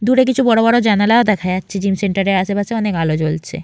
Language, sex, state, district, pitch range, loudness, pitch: Bengali, female, West Bengal, Jalpaiguri, 190-230 Hz, -15 LUFS, 205 Hz